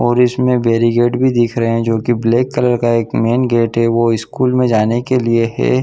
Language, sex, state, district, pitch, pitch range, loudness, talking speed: Hindi, male, Chhattisgarh, Bilaspur, 120 Hz, 115-125 Hz, -14 LUFS, 235 wpm